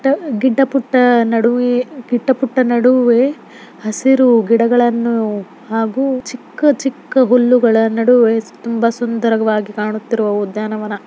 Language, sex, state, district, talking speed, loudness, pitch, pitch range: Kannada, female, Karnataka, Belgaum, 120 wpm, -14 LUFS, 240 Hz, 225-255 Hz